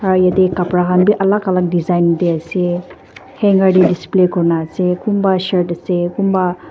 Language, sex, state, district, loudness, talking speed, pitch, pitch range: Nagamese, female, Nagaland, Dimapur, -15 LUFS, 170 wpm, 180 Hz, 175-190 Hz